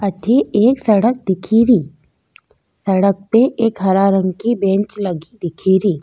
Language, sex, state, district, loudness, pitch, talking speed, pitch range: Rajasthani, female, Rajasthan, Nagaur, -15 LUFS, 200 Hz, 130 wpm, 190-225 Hz